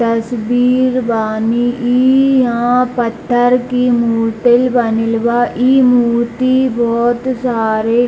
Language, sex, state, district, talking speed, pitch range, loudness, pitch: Hindi, male, Bihar, Darbhanga, 105 wpm, 230-250 Hz, -13 LUFS, 240 Hz